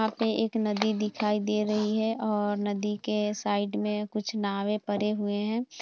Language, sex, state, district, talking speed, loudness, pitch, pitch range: Hindi, female, Bihar, Bhagalpur, 185 wpm, -29 LUFS, 210 Hz, 205-215 Hz